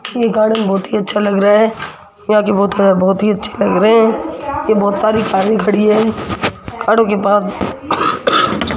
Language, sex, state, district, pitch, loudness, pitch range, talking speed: Hindi, female, Rajasthan, Jaipur, 210 Hz, -14 LUFS, 200-220 Hz, 185 wpm